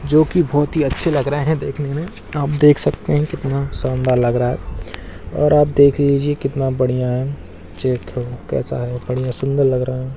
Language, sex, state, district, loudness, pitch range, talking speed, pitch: Hindi, male, Bihar, Darbhanga, -18 LUFS, 125-145 Hz, 195 wpm, 135 Hz